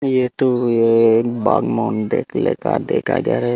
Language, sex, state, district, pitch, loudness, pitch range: Hindi, male, Tripura, Unakoti, 120 Hz, -17 LUFS, 115-125 Hz